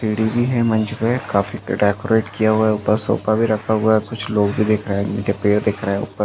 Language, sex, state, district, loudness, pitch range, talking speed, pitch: Hindi, male, Chhattisgarh, Balrampur, -19 LUFS, 105-110 Hz, 280 wpm, 110 Hz